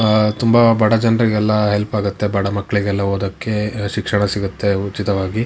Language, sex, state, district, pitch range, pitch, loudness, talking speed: Kannada, male, Karnataka, Shimoga, 100-110 Hz, 105 Hz, -17 LUFS, 130 wpm